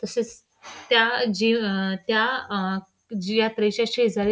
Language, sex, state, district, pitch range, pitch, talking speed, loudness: Marathi, female, Maharashtra, Pune, 205-235 Hz, 220 Hz, 140 wpm, -23 LUFS